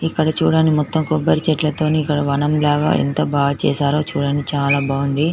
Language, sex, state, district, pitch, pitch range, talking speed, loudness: Telugu, female, Telangana, Nalgonda, 150 Hz, 140-155 Hz, 145 wpm, -18 LUFS